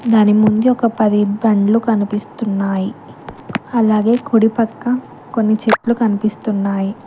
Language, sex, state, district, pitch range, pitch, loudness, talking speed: Telugu, female, Telangana, Mahabubabad, 210-230 Hz, 220 Hz, -16 LUFS, 95 wpm